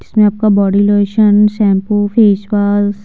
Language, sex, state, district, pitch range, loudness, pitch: Hindi, female, Bihar, Patna, 205-210 Hz, -11 LUFS, 205 Hz